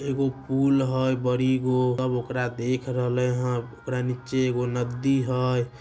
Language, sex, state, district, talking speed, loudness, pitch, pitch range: Magahi, male, Bihar, Samastipur, 155 wpm, -25 LUFS, 125 Hz, 125-130 Hz